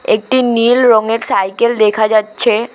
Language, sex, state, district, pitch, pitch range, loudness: Bengali, female, West Bengal, Alipurduar, 230 Hz, 215-245 Hz, -12 LUFS